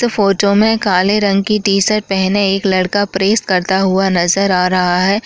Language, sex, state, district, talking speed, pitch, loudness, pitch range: Chhattisgarhi, female, Chhattisgarh, Jashpur, 205 wpm, 195 Hz, -13 LUFS, 190-205 Hz